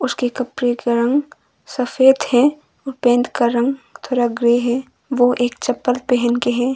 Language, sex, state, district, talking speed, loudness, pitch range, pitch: Hindi, female, Arunachal Pradesh, Longding, 170 wpm, -18 LUFS, 240-265 Hz, 245 Hz